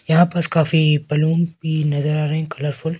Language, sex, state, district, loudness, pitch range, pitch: Hindi, male, Madhya Pradesh, Katni, -19 LUFS, 150-165 Hz, 155 Hz